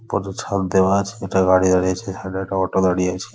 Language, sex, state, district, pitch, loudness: Bengali, male, West Bengal, Paschim Medinipur, 95 Hz, -19 LUFS